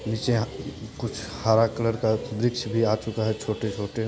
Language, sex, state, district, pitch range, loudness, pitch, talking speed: Hindi, male, Bihar, Purnia, 110-115 Hz, -26 LUFS, 110 Hz, 160 wpm